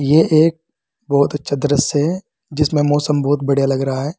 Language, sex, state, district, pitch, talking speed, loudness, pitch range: Hindi, male, Uttar Pradesh, Saharanpur, 145 Hz, 185 wpm, -16 LUFS, 140-155 Hz